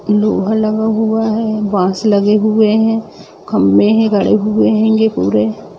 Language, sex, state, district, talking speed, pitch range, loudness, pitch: Hindi, female, Jharkhand, Sahebganj, 145 wpm, 205-220 Hz, -13 LUFS, 215 Hz